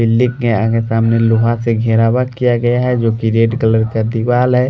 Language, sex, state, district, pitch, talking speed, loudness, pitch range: Hindi, male, Delhi, New Delhi, 115 Hz, 205 wpm, -14 LUFS, 115-120 Hz